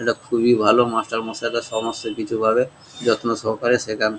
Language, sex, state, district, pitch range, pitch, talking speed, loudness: Bengali, male, West Bengal, Kolkata, 110-120 Hz, 115 Hz, 160 wpm, -21 LUFS